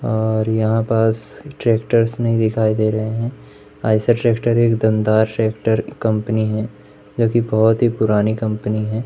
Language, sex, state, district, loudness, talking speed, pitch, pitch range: Hindi, male, Madhya Pradesh, Umaria, -18 LUFS, 140 wpm, 110 Hz, 110-115 Hz